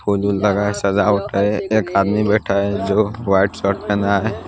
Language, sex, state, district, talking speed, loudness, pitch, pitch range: Hindi, male, Odisha, Nuapada, 200 wpm, -18 LUFS, 100 Hz, 100-105 Hz